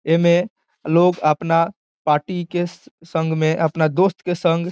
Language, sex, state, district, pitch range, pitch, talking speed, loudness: Bhojpuri, male, Bihar, Saran, 160-175 Hz, 165 Hz, 165 wpm, -19 LUFS